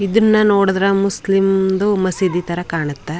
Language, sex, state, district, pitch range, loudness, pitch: Kannada, female, Karnataka, Chamarajanagar, 175-200 Hz, -16 LUFS, 195 Hz